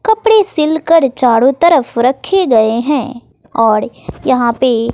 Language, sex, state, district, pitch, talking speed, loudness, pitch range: Hindi, female, Bihar, West Champaran, 260 Hz, 135 wpm, -12 LUFS, 235-330 Hz